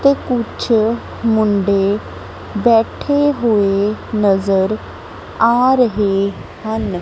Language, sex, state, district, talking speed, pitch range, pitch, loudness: Punjabi, female, Punjab, Kapurthala, 75 wpm, 200-235 Hz, 215 Hz, -16 LUFS